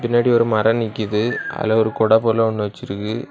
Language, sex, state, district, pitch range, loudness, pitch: Tamil, male, Tamil Nadu, Kanyakumari, 110-120 Hz, -18 LUFS, 110 Hz